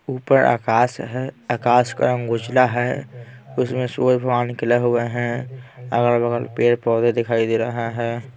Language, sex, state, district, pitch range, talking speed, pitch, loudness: Hindi, male, Bihar, Patna, 120-125 Hz, 150 wpm, 120 Hz, -20 LUFS